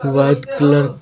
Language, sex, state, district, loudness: Hindi, male, Jharkhand, Deoghar, -15 LUFS